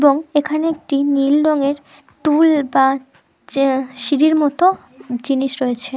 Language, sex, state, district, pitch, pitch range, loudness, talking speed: Bengali, female, West Bengal, Dakshin Dinajpur, 285 Hz, 270-305 Hz, -17 LUFS, 120 wpm